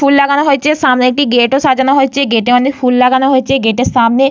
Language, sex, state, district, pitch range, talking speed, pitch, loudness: Bengali, female, West Bengal, Paschim Medinipur, 250-280 Hz, 250 wpm, 265 Hz, -11 LUFS